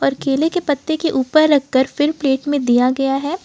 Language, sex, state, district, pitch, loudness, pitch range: Hindi, female, Jharkhand, Ranchi, 285 Hz, -17 LUFS, 265-310 Hz